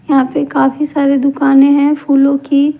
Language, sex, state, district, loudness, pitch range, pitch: Hindi, male, Delhi, New Delhi, -12 LUFS, 275-290 Hz, 280 Hz